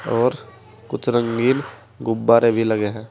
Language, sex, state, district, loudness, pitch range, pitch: Hindi, male, Uttar Pradesh, Saharanpur, -19 LUFS, 110-120 Hz, 115 Hz